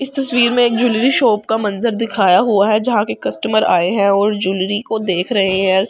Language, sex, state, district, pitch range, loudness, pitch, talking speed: Hindi, female, Delhi, New Delhi, 195-240 Hz, -15 LUFS, 215 Hz, 235 wpm